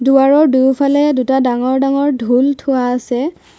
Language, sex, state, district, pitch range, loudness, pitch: Assamese, female, Assam, Kamrup Metropolitan, 255-280 Hz, -14 LUFS, 265 Hz